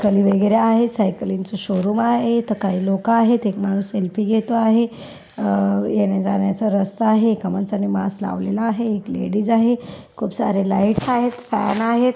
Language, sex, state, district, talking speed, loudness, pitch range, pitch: Marathi, female, Maharashtra, Pune, 165 wpm, -19 LUFS, 195-230 Hz, 210 Hz